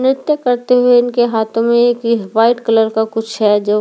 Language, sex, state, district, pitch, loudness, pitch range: Hindi, female, Delhi, New Delhi, 230 Hz, -14 LUFS, 220-245 Hz